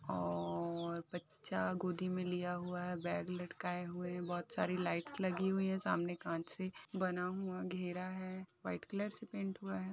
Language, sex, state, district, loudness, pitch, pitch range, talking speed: Hindi, female, Uttar Pradesh, Hamirpur, -41 LUFS, 180 Hz, 175-185 Hz, 185 wpm